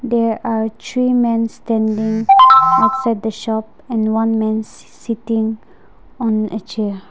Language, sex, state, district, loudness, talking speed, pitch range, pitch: English, female, Nagaland, Dimapur, -16 LUFS, 125 wpm, 220-240 Hz, 225 Hz